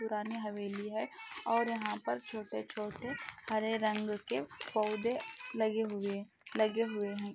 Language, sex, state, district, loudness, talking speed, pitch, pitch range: Hindi, female, Rajasthan, Nagaur, -37 LUFS, 130 wpm, 215 Hz, 205-225 Hz